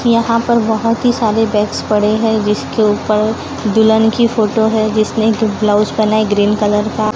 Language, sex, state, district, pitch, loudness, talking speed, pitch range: Hindi, female, Maharashtra, Gondia, 220 Hz, -14 LUFS, 185 wpm, 210-225 Hz